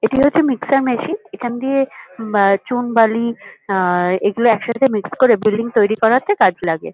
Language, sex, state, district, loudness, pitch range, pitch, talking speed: Bengali, female, West Bengal, Kolkata, -16 LUFS, 210-265 Hz, 235 Hz, 175 wpm